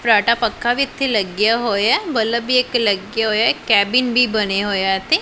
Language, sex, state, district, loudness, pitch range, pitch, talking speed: Punjabi, female, Punjab, Pathankot, -17 LUFS, 210-245 Hz, 230 Hz, 205 wpm